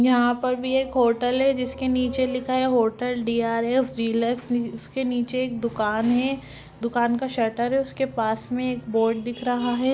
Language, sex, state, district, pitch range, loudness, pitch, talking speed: Hindi, female, Bihar, Lakhisarai, 235-255 Hz, -24 LUFS, 245 Hz, 180 wpm